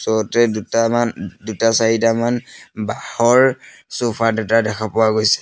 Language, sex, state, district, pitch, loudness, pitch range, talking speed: Assamese, male, Assam, Sonitpur, 115 Hz, -17 LUFS, 110-120 Hz, 110 wpm